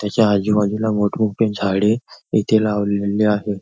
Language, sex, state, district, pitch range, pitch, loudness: Marathi, male, Maharashtra, Nagpur, 100-110 Hz, 105 Hz, -18 LUFS